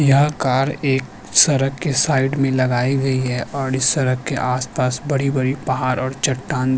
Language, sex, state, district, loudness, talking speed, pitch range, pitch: Hindi, male, Uttarakhand, Tehri Garhwal, -18 LUFS, 185 wpm, 130-140 Hz, 130 Hz